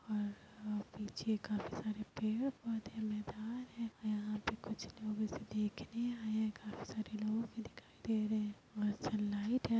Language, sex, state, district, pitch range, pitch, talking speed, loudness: Hindi, female, Bihar, Muzaffarpur, 210-225 Hz, 215 Hz, 165 wpm, -41 LUFS